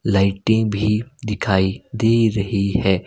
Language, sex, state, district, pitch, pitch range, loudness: Hindi, male, Himachal Pradesh, Shimla, 105 Hz, 95-110 Hz, -19 LUFS